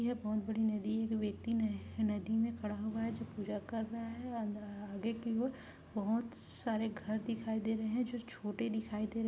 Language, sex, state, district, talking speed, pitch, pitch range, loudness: Hindi, female, Chhattisgarh, Raigarh, 220 wpm, 220 Hz, 215-230 Hz, -38 LUFS